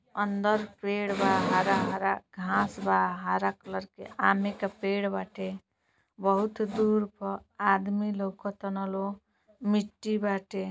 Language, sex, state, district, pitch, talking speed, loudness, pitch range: Bhojpuri, female, Uttar Pradesh, Gorakhpur, 200 Hz, 120 wpm, -29 LUFS, 190-205 Hz